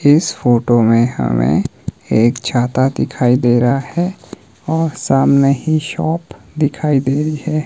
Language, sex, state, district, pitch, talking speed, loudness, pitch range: Hindi, male, Himachal Pradesh, Shimla, 140 Hz, 140 wpm, -15 LUFS, 120-155 Hz